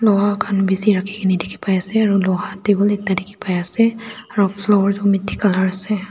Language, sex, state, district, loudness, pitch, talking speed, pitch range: Nagamese, female, Nagaland, Dimapur, -18 LUFS, 200 Hz, 215 wpm, 190-210 Hz